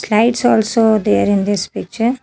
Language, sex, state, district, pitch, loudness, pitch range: English, female, Telangana, Hyderabad, 220 Hz, -15 LUFS, 205-230 Hz